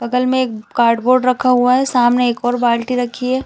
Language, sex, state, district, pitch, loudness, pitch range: Hindi, female, Chhattisgarh, Balrampur, 245 Hz, -15 LUFS, 240-255 Hz